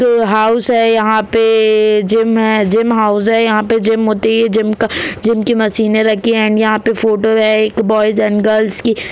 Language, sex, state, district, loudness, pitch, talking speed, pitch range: Hindi, male, Jharkhand, Jamtara, -12 LUFS, 220 Hz, 205 wpm, 215-225 Hz